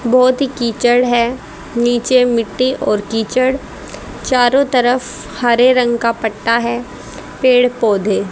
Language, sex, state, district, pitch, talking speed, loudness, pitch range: Hindi, female, Haryana, Jhajjar, 245 Hz, 120 wpm, -14 LUFS, 230-255 Hz